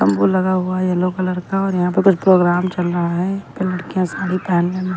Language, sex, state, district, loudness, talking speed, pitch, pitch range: Hindi, female, Delhi, New Delhi, -18 LUFS, 230 wpm, 185 Hz, 180-185 Hz